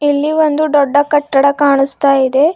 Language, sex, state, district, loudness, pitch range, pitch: Kannada, female, Karnataka, Bidar, -12 LUFS, 275-300 Hz, 285 Hz